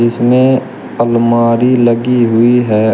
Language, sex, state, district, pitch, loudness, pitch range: Hindi, male, Uttar Pradesh, Shamli, 120 Hz, -11 LUFS, 115-125 Hz